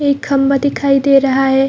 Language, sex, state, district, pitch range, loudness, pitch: Hindi, female, Chhattisgarh, Bilaspur, 270-280 Hz, -13 LUFS, 275 Hz